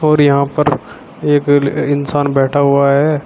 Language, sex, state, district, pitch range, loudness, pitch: Hindi, male, Uttar Pradesh, Shamli, 140-150 Hz, -13 LUFS, 145 Hz